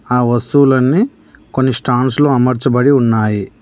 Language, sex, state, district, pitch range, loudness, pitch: Telugu, male, Telangana, Mahabubabad, 120-135 Hz, -13 LUFS, 125 Hz